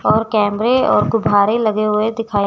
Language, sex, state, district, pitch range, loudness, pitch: Hindi, female, Chandigarh, Chandigarh, 205-225 Hz, -15 LUFS, 215 Hz